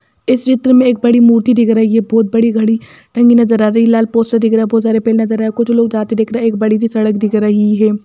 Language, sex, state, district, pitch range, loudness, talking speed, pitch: Hindi, female, Madhya Pradesh, Bhopal, 220-235 Hz, -12 LUFS, 315 wpm, 225 Hz